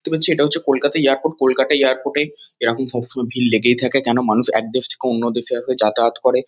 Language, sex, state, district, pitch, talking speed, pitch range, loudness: Bengali, male, West Bengal, North 24 Parganas, 130 Hz, 215 wpm, 120-140 Hz, -17 LUFS